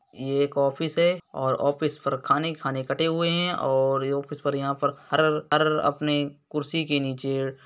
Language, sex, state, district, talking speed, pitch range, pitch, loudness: Hindi, male, Uttar Pradesh, Hamirpur, 180 wpm, 135-155 Hz, 140 Hz, -25 LUFS